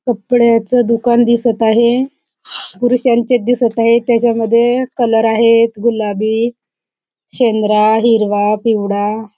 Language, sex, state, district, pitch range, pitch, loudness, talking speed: Marathi, female, Maharashtra, Chandrapur, 220-240 Hz, 230 Hz, -13 LUFS, 95 wpm